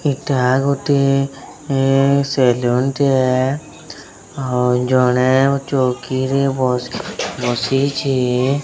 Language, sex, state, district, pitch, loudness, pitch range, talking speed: Odia, male, Odisha, Sambalpur, 135 Hz, -17 LUFS, 125-140 Hz, 60 wpm